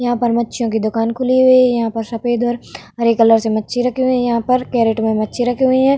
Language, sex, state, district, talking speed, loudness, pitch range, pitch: Hindi, female, Bihar, Vaishali, 280 wpm, -16 LUFS, 225-250 Hz, 240 Hz